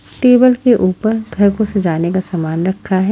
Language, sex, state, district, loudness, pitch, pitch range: Hindi, female, Haryana, Rohtak, -14 LUFS, 200 Hz, 185-225 Hz